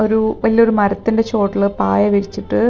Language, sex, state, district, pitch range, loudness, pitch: Malayalam, female, Kerala, Wayanad, 200-225 Hz, -16 LUFS, 210 Hz